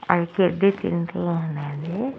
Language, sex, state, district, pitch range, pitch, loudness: Telugu, female, Andhra Pradesh, Annamaya, 165-195 Hz, 175 Hz, -23 LUFS